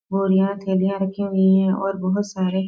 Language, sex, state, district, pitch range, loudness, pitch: Hindi, female, Bihar, East Champaran, 190-195 Hz, -20 LUFS, 195 Hz